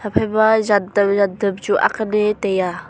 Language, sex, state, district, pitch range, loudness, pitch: Wancho, female, Arunachal Pradesh, Longding, 200-215 Hz, -17 LUFS, 205 Hz